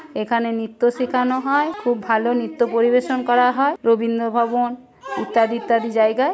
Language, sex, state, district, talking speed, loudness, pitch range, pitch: Bengali, female, West Bengal, Purulia, 140 wpm, -19 LUFS, 230-250 Hz, 240 Hz